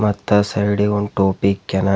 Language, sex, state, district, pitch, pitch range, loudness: Kannada, male, Karnataka, Bidar, 100 Hz, 100-105 Hz, -18 LUFS